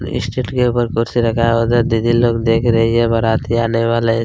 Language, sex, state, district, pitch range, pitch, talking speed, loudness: Hindi, male, Chhattisgarh, Kabirdham, 115-120 Hz, 115 Hz, 195 wpm, -15 LUFS